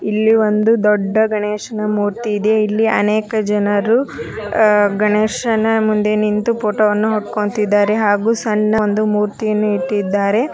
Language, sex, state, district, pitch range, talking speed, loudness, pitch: Kannada, male, Karnataka, Dharwad, 210-220 Hz, 120 wpm, -16 LUFS, 210 Hz